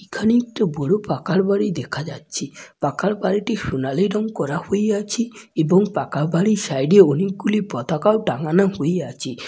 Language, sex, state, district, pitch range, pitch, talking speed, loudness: Bengali, male, West Bengal, Dakshin Dinajpur, 160-210 Hz, 195 Hz, 140 wpm, -20 LUFS